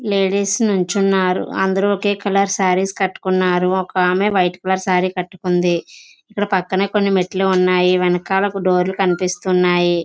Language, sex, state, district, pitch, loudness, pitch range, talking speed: Telugu, female, Andhra Pradesh, Visakhapatnam, 190 Hz, -17 LUFS, 180-195 Hz, 125 wpm